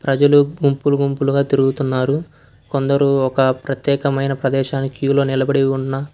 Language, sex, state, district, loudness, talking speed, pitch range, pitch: Telugu, male, Karnataka, Bangalore, -17 LUFS, 105 wpm, 135-140 Hz, 135 Hz